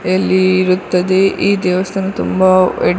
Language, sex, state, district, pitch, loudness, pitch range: Kannada, female, Karnataka, Dakshina Kannada, 185 Hz, -13 LUFS, 185-190 Hz